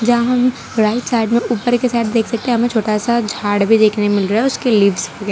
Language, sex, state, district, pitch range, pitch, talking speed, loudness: Hindi, female, Gujarat, Valsad, 210-240 Hz, 230 Hz, 260 wpm, -15 LUFS